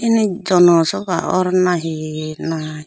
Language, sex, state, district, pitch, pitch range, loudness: Chakma, female, Tripura, Unakoti, 170 Hz, 155-185 Hz, -17 LUFS